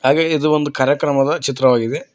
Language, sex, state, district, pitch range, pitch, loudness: Kannada, male, Karnataka, Koppal, 130-150 Hz, 140 Hz, -16 LUFS